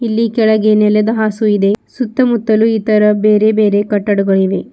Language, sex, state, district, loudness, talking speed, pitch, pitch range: Kannada, female, Karnataka, Bidar, -12 LUFS, 140 wpm, 215 Hz, 205-220 Hz